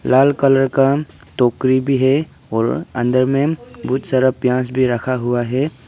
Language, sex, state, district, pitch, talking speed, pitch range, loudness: Hindi, male, Arunachal Pradesh, Papum Pare, 130 Hz, 165 wpm, 125-135 Hz, -17 LUFS